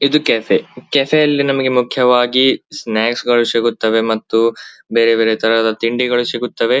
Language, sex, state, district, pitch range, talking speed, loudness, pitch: Kannada, male, Karnataka, Belgaum, 115-130 Hz, 115 wpm, -15 LUFS, 120 Hz